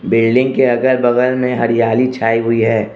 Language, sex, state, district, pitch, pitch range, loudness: Hindi, male, Arunachal Pradesh, Lower Dibang Valley, 120 Hz, 115-125 Hz, -14 LUFS